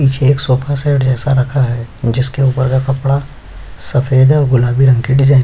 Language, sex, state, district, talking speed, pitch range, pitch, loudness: Hindi, male, Bihar, Kishanganj, 200 wpm, 125-135 Hz, 130 Hz, -13 LUFS